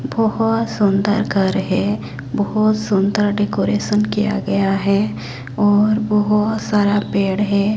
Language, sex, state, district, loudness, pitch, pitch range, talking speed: Hindi, male, Chhattisgarh, Raipur, -17 LUFS, 205 Hz, 195-215 Hz, 115 wpm